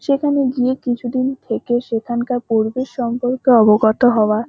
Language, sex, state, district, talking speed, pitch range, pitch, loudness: Bengali, female, West Bengal, North 24 Parganas, 120 wpm, 230-255 Hz, 245 Hz, -17 LUFS